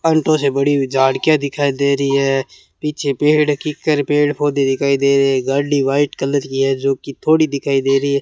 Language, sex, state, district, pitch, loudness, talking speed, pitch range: Hindi, male, Rajasthan, Bikaner, 140 Hz, -16 LUFS, 195 wpm, 135-145 Hz